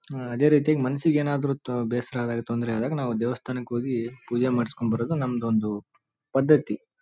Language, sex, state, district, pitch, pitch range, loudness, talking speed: Kannada, male, Karnataka, Raichur, 125 Hz, 120-145 Hz, -26 LUFS, 145 wpm